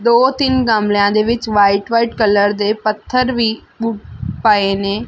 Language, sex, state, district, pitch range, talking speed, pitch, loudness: Punjabi, female, Punjab, Fazilka, 205-235 Hz, 155 wpm, 220 Hz, -15 LUFS